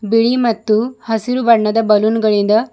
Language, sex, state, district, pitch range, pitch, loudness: Kannada, female, Karnataka, Bidar, 215-235 Hz, 225 Hz, -14 LUFS